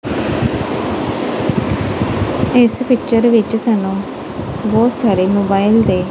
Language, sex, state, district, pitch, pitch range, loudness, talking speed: Punjabi, female, Punjab, Kapurthala, 220 Hz, 195-235 Hz, -15 LUFS, 80 wpm